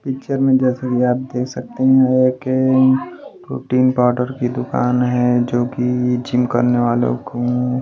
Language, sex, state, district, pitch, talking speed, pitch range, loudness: Hindi, male, Maharashtra, Washim, 125 Hz, 155 wpm, 125-130 Hz, -17 LUFS